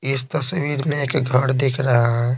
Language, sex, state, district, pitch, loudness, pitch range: Hindi, male, Bihar, Patna, 135 Hz, -20 LUFS, 125-145 Hz